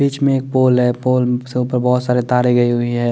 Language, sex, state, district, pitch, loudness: Hindi, male, Chandigarh, Chandigarh, 125 Hz, -16 LUFS